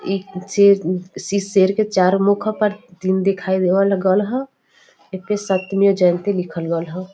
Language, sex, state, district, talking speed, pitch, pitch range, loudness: Bhojpuri, female, Uttar Pradesh, Varanasi, 160 wpm, 195 Hz, 185-200 Hz, -18 LUFS